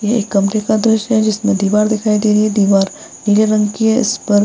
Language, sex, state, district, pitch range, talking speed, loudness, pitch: Hindi, female, Bihar, Vaishali, 205-220 Hz, 245 wpm, -14 LUFS, 215 Hz